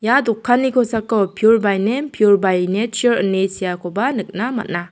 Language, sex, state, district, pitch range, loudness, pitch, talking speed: Garo, female, Meghalaya, South Garo Hills, 195-240 Hz, -17 LUFS, 215 Hz, 160 wpm